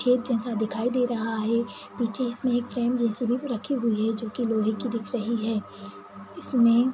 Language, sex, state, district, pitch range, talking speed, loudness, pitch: Kumaoni, male, Uttarakhand, Tehri Garhwal, 225-245 Hz, 205 wpm, -26 LUFS, 235 Hz